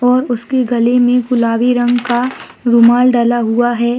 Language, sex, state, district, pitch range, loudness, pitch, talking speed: Hindi, female, Maharashtra, Solapur, 240-250 Hz, -13 LUFS, 245 Hz, 165 wpm